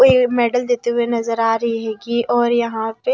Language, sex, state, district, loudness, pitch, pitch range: Hindi, female, Haryana, Rohtak, -18 LUFS, 235 Hz, 230-245 Hz